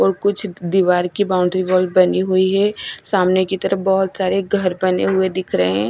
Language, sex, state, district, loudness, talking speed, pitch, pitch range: Hindi, female, Chhattisgarh, Raipur, -17 LUFS, 205 wpm, 185 Hz, 180-190 Hz